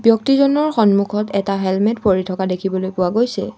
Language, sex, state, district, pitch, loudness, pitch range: Assamese, female, Assam, Sonitpur, 200 Hz, -17 LUFS, 190-230 Hz